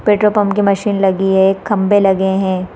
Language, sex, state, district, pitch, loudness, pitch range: Hindi, female, Chhattisgarh, Raigarh, 195 Hz, -14 LUFS, 190-205 Hz